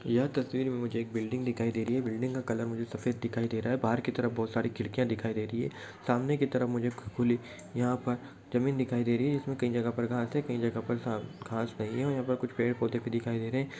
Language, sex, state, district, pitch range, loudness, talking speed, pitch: Hindi, male, Bihar, Lakhisarai, 115-125 Hz, -32 LUFS, 280 wpm, 120 Hz